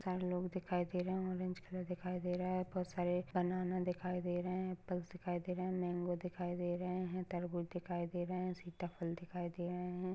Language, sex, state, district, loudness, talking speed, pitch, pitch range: Hindi, female, Maharashtra, Sindhudurg, -41 LUFS, 230 wpm, 180 Hz, 175-185 Hz